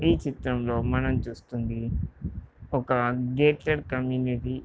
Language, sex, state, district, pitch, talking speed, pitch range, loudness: Telugu, male, Andhra Pradesh, Visakhapatnam, 125 Hz, 105 wpm, 120-130 Hz, -27 LUFS